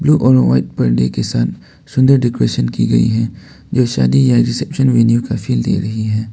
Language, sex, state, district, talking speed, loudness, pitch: Hindi, male, Arunachal Pradesh, Papum Pare, 210 wpm, -14 LUFS, 105 Hz